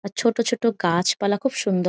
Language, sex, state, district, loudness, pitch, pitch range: Bengali, female, West Bengal, Jhargram, -22 LUFS, 205 Hz, 185-235 Hz